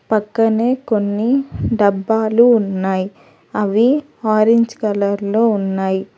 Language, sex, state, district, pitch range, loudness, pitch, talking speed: Telugu, female, Telangana, Hyderabad, 200-230 Hz, -16 LUFS, 215 Hz, 85 wpm